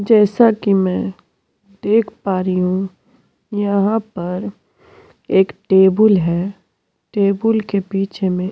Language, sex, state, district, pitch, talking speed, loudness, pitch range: Hindi, female, Uttarakhand, Tehri Garhwal, 195 Hz, 120 wpm, -17 LUFS, 190-210 Hz